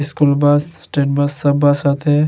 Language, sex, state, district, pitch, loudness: Hindi, male, Uttar Pradesh, Hamirpur, 145 Hz, -15 LUFS